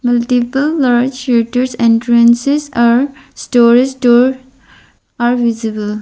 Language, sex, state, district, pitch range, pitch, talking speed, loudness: English, female, Arunachal Pradesh, Lower Dibang Valley, 235-260 Hz, 245 Hz, 90 wpm, -12 LUFS